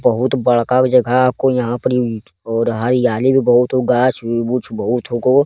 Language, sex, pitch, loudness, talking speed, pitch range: Angika, male, 125 Hz, -16 LUFS, 165 wpm, 120-130 Hz